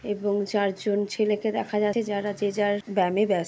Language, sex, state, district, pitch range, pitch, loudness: Bengali, female, West Bengal, Jalpaiguri, 200-210 Hz, 205 Hz, -26 LUFS